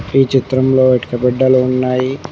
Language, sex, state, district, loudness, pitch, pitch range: Telugu, male, Telangana, Mahabubabad, -14 LUFS, 130 Hz, 125-130 Hz